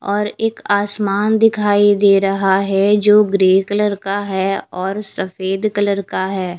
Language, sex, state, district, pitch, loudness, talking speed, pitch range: Hindi, female, Haryana, Rohtak, 200 Hz, -16 LUFS, 155 wpm, 195-210 Hz